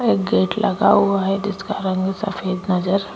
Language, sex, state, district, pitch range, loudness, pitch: Hindi, female, Goa, North and South Goa, 190-200 Hz, -19 LUFS, 195 Hz